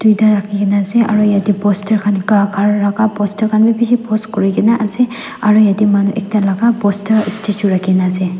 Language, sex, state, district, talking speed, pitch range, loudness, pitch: Nagamese, female, Nagaland, Dimapur, 150 wpm, 200-220 Hz, -13 LUFS, 210 Hz